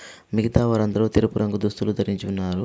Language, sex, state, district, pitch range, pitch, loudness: Telugu, male, Telangana, Adilabad, 100-110 Hz, 105 Hz, -23 LUFS